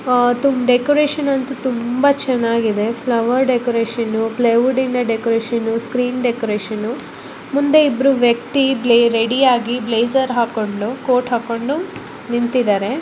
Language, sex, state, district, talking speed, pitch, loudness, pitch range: Kannada, female, Karnataka, Bellary, 95 wpm, 245 Hz, -17 LUFS, 230-265 Hz